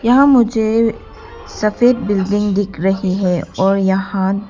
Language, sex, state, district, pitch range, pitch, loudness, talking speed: Hindi, female, Arunachal Pradesh, Papum Pare, 190-225 Hz, 200 Hz, -15 LUFS, 120 wpm